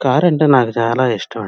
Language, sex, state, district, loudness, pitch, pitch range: Telugu, male, Andhra Pradesh, Krishna, -14 LUFS, 130 Hz, 115-140 Hz